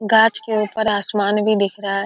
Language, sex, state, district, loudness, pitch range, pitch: Hindi, female, Bihar, Kishanganj, -18 LUFS, 200-220 Hz, 210 Hz